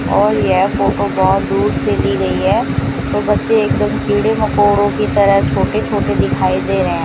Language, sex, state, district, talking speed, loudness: Hindi, female, Rajasthan, Bikaner, 185 wpm, -14 LUFS